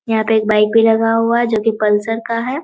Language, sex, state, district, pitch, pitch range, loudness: Hindi, female, Bihar, Muzaffarpur, 225 Hz, 220-230 Hz, -15 LUFS